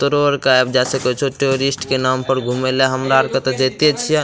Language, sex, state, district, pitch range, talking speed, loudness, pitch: Maithili, male, Bihar, Madhepura, 130-140 Hz, 225 wpm, -16 LUFS, 135 Hz